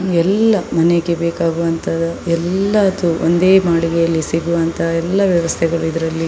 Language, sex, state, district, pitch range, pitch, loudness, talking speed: Kannada, female, Karnataka, Dakshina Kannada, 165-180 Hz, 170 Hz, -16 LUFS, 105 wpm